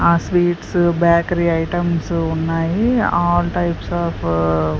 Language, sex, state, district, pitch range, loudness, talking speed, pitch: Telugu, female, Andhra Pradesh, Sri Satya Sai, 160-175 Hz, -17 LUFS, 115 wpm, 170 Hz